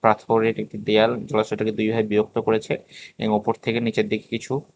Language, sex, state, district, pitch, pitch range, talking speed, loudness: Bengali, male, Tripura, West Tripura, 110 Hz, 110-115 Hz, 165 wpm, -23 LUFS